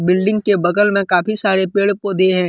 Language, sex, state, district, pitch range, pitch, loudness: Hindi, male, Jharkhand, Deoghar, 185-205 Hz, 195 Hz, -15 LUFS